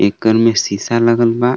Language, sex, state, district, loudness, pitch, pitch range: Bhojpuri, male, Jharkhand, Palamu, -14 LUFS, 115 Hz, 110-115 Hz